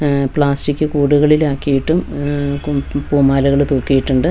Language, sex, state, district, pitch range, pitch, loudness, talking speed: Malayalam, female, Kerala, Wayanad, 140-145 Hz, 140 Hz, -15 LUFS, 85 wpm